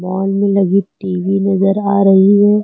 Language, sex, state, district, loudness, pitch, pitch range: Hindi, female, Uttar Pradesh, Lucknow, -13 LUFS, 195 Hz, 190-200 Hz